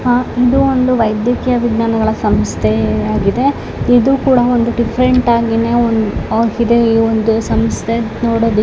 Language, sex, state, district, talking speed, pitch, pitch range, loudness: Kannada, female, Karnataka, Raichur, 120 wpm, 230 Hz, 220-245 Hz, -13 LUFS